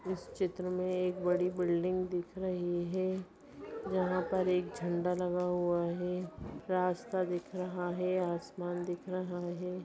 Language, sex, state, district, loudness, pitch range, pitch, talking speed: Hindi, male, Bihar, Muzaffarpur, -35 LUFS, 175-185 Hz, 180 Hz, 145 wpm